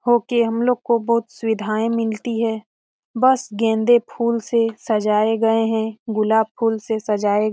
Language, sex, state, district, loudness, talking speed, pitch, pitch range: Hindi, female, Bihar, Jamui, -19 LUFS, 150 wpm, 225 Hz, 220-235 Hz